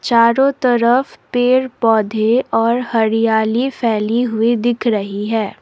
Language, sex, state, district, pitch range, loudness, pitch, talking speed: Hindi, female, Assam, Sonitpur, 220-245 Hz, -16 LUFS, 230 Hz, 115 wpm